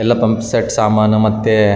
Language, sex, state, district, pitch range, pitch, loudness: Kannada, male, Karnataka, Raichur, 110-115 Hz, 110 Hz, -14 LUFS